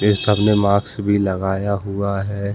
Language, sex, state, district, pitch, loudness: Hindi, male, Chhattisgarh, Balrampur, 100 Hz, -19 LUFS